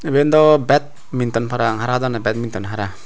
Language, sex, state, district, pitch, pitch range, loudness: Chakma, male, Tripura, Unakoti, 125 Hz, 115-145 Hz, -17 LUFS